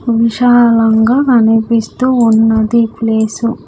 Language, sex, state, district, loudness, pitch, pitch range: Telugu, female, Andhra Pradesh, Sri Satya Sai, -11 LUFS, 230 Hz, 225-235 Hz